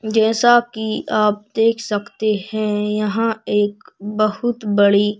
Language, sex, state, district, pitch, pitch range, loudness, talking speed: Hindi, male, Madhya Pradesh, Bhopal, 215 Hz, 210-225 Hz, -18 LUFS, 115 wpm